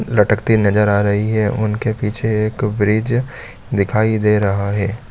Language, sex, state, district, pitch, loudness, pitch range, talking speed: Hindi, male, Chhattisgarh, Bilaspur, 105 Hz, -17 LUFS, 105-110 Hz, 150 wpm